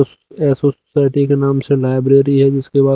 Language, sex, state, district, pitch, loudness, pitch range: Hindi, male, Haryana, Jhajjar, 140 Hz, -14 LUFS, 135-140 Hz